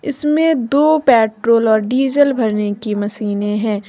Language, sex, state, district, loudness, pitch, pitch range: Hindi, female, Jharkhand, Deoghar, -15 LUFS, 230 Hz, 210-285 Hz